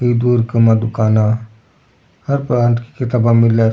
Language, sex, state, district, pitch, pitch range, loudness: Rajasthani, male, Rajasthan, Churu, 115 Hz, 110-125 Hz, -15 LUFS